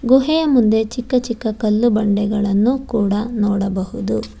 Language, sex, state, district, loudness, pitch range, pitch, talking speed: Kannada, female, Karnataka, Bangalore, -17 LUFS, 205-250 Hz, 220 Hz, 110 wpm